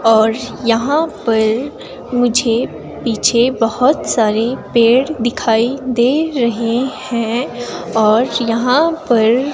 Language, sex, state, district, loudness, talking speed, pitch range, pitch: Hindi, female, Himachal Pradesh, Shimla, -15 LUFS, 100 wpm, 225-255 Hz, 235 Hz